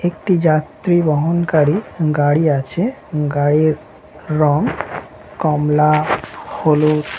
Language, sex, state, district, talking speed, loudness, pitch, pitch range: Bengali, male, West Bengal, Malda, 75 wpm, -16 LUFS, 155 Hz, 150-170 Hz